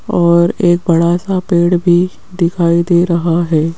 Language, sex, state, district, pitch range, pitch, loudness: Hindi, female, Rajasthan, Jaipur, 170-175 Hz, 175 Hz, -13 LUFS